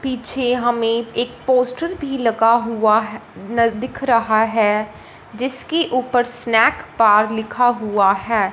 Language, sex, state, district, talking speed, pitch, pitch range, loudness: Hindi, female, Punjab, Fazilka, 125 wpm, 235 Hz, 220-250 Hz, -18 LUFS